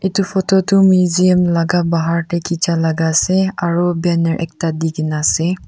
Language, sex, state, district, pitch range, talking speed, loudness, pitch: Nagamese, female, Nagaland, Kohima, 165-185 Hz, 170 wpm, -15 LUFS, 170 Hz